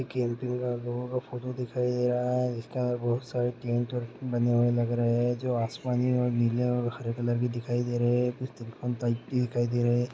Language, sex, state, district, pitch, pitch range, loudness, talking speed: Hindi, male, Bihar, Purnia, 120 Hz, 120-125 Hz, -29 LUFS, 225 wpm